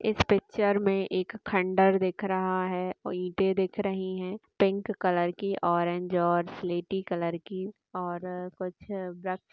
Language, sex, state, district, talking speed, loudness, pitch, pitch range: Hindi, female, Chhattisgarh, Raigarh, 150 wpm, -29 LUFS, 185 Hz, 180-195 Hz